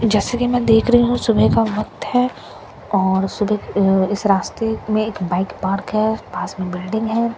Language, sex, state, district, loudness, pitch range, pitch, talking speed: Hindi, female, Bihar, Katihar, -18 LUFS, 195-225 Hz, 215 Hz, 195 wpm